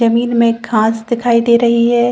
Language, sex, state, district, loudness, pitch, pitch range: Hindi, female, Chhattisgarh, Bastar, -13 LUFS, 235 Hz, 230-240 Hz